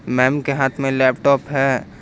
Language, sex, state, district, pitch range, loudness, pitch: Hindi, male, Jharkhand, Ranchi, 130-140 Hz, -18 LUFS, 135 Hz